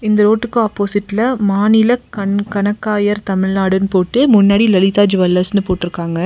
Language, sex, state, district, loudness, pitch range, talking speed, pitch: Tamil, female, Tamil Nadu, Nilgiris, -14 LUFS, 190-215 Hz, 115 wpm, 205 Hz